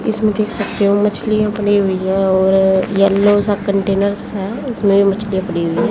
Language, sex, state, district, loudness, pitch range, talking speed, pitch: Hindi, female, Haryana, Jhajjar, -15 LUFS, 195-210 Hz, 180 wpm, 200 Hz